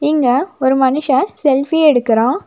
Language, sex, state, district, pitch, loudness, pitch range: Tamil, female, Tamil Nadu, Nilgiris, 275 Hz, -14 LUFS, 260-305 Hz